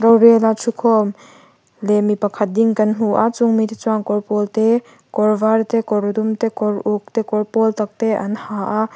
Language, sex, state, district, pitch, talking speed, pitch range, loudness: Mizo, female, Mizoram, Aizawl, 220 Hz, 210 wpm, 210-225 Hz, -17 LUFS